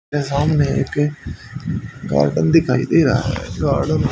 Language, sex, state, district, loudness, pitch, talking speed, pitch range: Hindi, male, Haryana, Charkhi Dadri, -18 LUFS, 145 Hz, 145 wpm, 130-150 Hz